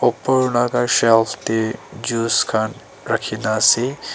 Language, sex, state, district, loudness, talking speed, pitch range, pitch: Nagamese, male, Nagaland, Dimapur, -18 LUFS, 130 wpm, 110-120 Hz, 115 Hz